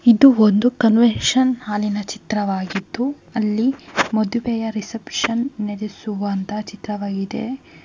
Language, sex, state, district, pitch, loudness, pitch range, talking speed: Kannada, female, Karnataka, Mysore, 215 Hz, -20 LUFS, 210-235 Hz, 85 wpm